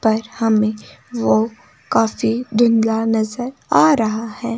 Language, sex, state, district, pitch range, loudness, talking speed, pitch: Hindi, female, Himachal Pradesh, Shimla, 220-235 Hz, -18 LUFS, 120 wpm, 225 Hz